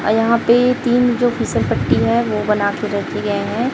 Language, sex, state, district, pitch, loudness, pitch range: Hindi, female, Chhattisgarh, Raipur, 230 Hz, -17 LUFS, 210-245 Hz